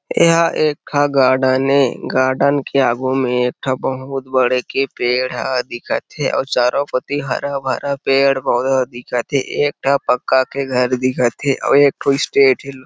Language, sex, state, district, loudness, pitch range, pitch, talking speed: Chhattisgarhi, male, Chhattisgarh, Sarguja, -17 LUFS, 130-140 Hz, 130 Hz, 185 wpm